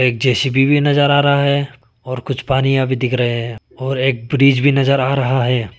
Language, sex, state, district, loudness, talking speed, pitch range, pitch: Hindi, male, Arunachal Pradesh, Lower Dibang Valley, -15 LUFS, 230 wpm, 125-140 Hz, 135 Hz